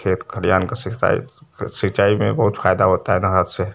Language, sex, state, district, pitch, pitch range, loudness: Hindi, male, Uttar Pradesh, Varanasi, 95 Hz, 90-105 Hz, -18 LUFS